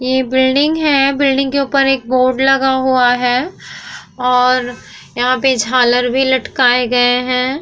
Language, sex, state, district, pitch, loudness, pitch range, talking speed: Hindi, female, Bihar, Vaishali, 260 Hz, -13 LUFS, 250-270 Hz, 155 wpm